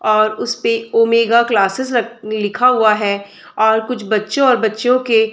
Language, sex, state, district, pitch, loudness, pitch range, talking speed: Hindi, female, Uttar Pradesh, Budaun, 225 Hz, -15 LUFS, 215-240 Hz, 170 wpm